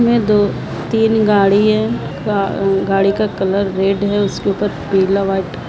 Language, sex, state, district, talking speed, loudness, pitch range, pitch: Hindi, female, Maharashtra, Nagpur, 160 wpm, -15 LUFS, 195-210 Hz, 200 Hz